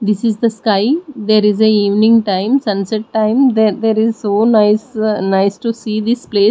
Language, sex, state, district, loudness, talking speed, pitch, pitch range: English, female, Odisha, Nuapada, -14 LUFS, 205 wpm, 215 Hz, 210-225 Hz